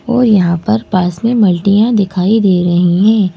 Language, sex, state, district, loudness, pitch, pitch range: Hindi, female, Madhya Pradesh, Bhopal, -11 LUFS, 200 Hz, 180-220 Hz